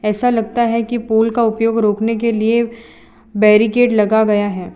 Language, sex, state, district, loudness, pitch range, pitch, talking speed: Hindi, female, Gujarat, Valsad, -15 LUFS, 210-230 Hz, 225 Hz, 175 wpm